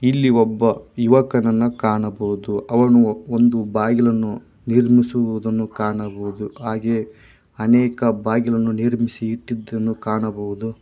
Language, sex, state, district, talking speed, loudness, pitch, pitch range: Kannada, male, Karnataka, Koppal, 85 wpm, -19 LUFS, 115 Hz, 110-120 Hz